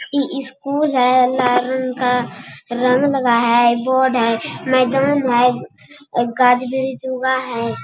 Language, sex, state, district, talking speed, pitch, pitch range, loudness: Hindi, female, Bihar, Bhagalpur, 140 wpm, 255 Hz, 245-265 Hz, -17 LUFS